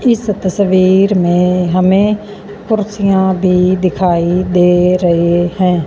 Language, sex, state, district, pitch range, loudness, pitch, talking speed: Hindi, female, Punjab, Fazilka, 180-200 Hz, -12 LUFS, 185 Hz, 100 wpm